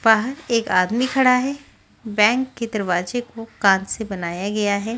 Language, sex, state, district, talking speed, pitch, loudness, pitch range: Hindi, female, Maharashtra, Washim, 170 wpm, 225 Hz, -20 LUFS, 200-250 Hz